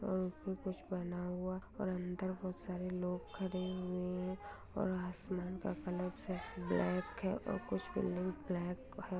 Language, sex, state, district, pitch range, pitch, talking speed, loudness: Hindi, female, Bihar, Darbhanga, 180-185 Hz, 180 Hz, 165 wpm, -41 LUFS